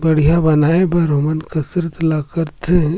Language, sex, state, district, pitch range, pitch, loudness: Surgujia, male, Chhattisgarh, Sarguja, 155-170 Hz, 160 Hz, -16 LUFS